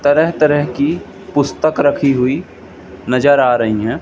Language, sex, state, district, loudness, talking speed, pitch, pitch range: Hindi, male, Madhya Pradesh, Katni, -15 LUFS, 150 wpm, 140 Hz, 115-145 Hz